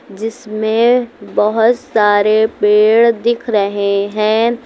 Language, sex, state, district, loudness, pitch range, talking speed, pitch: Hindi, female, Uttar Pradesh, Lucknow, -13 LUFS, 210-235 Hz, 90 wpm, 220 Hz